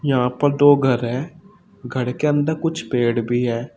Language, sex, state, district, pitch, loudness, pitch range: Hindi, male, Uttar Pradesh, Shamli, 135 Hz, -19 LUFS, 125-150 Hz